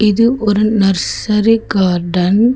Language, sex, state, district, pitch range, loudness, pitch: Tamil, female, Tamil Nadu, Chennai, 190-225 Hz, -13 LUFS, 210 Hz